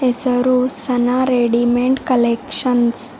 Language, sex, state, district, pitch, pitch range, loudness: Kannada, female, Karnataka, Bidar, 250 Hz, 240-255 Hz, -15 LUFS